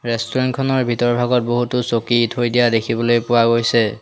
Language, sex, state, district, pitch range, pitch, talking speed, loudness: Assamese, male, Assam, Hailakandi, 115-120 Hz, 120 Hz, 165 wpm, -17 LUFS